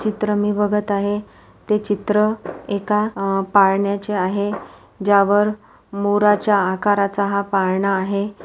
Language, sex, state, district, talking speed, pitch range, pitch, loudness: Marathi, female, Maharashtra, Pune, 115 wpm, 200-210 Hz, 205 Hz, -19 LUFS